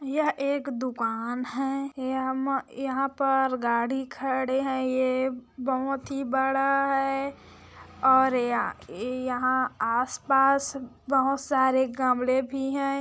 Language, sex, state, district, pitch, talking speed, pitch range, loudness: Hindi, female, Chhattisgarh, Korba, 265 Hz, 115 wpm, 255-275 Hz, -26 LUFS